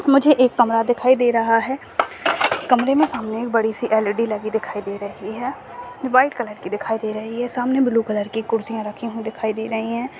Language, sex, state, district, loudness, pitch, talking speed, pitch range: Hindi, female, Goa, North and South Goa, -20 LUFS, 230 Hz, 210 wpm, 220-245 Hz